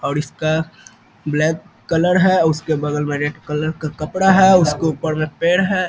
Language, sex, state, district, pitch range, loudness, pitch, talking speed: Hindi, male, Bihar, East Champaran, 150-175 Hz, -17 LUFS, 155 Hz, 215 wpm